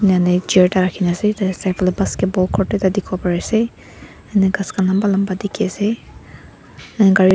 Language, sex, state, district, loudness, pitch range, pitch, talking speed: Nagamese, female, Nagaland, Dimapur, -17 LUFS, 185-200 Hz, 190 Hz, 140 wpm